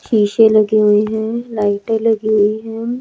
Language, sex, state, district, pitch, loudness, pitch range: Hindi, male, Chandigarh, Chandigarh, 220 Hz, -15 LUFS, 210-225 Hz